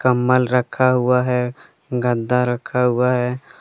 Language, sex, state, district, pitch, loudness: Hindi, male, Jharkhand, Deoghar, 125 Hz, -19 LUFS